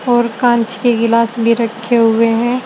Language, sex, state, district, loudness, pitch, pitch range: Hindi, female, Uttar Pradesh, Saharanpur, -13 LUFS, 230 Hz, 230-240 Hz